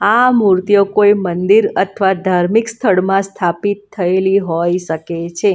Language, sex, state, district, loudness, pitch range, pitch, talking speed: Gujarati, female, Gujarat, Valsad, -14 LUFS, 180-205 Hz, 195 Hz, 130 wpm